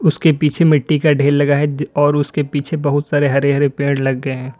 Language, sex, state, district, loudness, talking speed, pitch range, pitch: Hindi, male, Uttar Pradesh, Lalitpur, -16 LUFS, 235 wpm, 140-150 Hz, 145 Hz